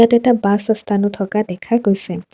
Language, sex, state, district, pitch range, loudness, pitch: Assamese, female, Assam, Kamrup Metropolitan, 195-230 Hz, -17 LUFS, 205 Hz